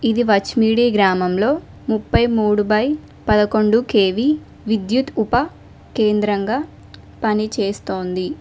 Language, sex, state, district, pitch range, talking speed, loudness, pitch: Telugu, female, Telangana, Mahabubabad, 210-240 Hz, 85 wpm, -18 LUFS, 220 Hz